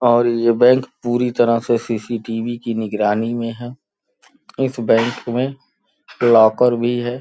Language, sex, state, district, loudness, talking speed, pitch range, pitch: Hindi, male, Uttar Pradesh, Gorakhpur, -17 LUFS, 140 wpm, 115-120 Hz, 120 Hz